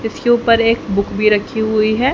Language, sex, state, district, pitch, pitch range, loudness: Hindi, female, Haryana, Jhajjar, 220 Hz, 215-235 Hz, -15 LUFS